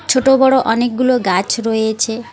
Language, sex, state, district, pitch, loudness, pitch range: Bengali, female, West Bengal, Alipurduar, 235 Hz, -14 LUFS, 220-255 Hz